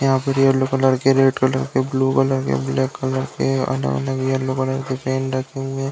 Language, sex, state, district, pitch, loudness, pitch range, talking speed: Hindi, male, Uttar Pradesh, Deoria, 130 Hz, -20 LUFS, 130-135 Hz, 335 wpm